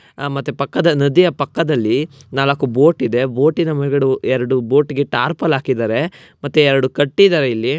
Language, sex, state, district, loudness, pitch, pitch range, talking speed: Kannada, male, Karnataka, Mysore, -16 LUFS, 140 Hz, 130-155 Hz, 145 wpm